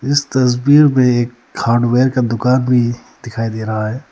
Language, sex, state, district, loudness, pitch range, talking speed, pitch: Hindi, male, Arunachal Pradesh, Lower Dibang Valley, -15 LUFS, 120-130 Hz, 175 wpm, 125 Hz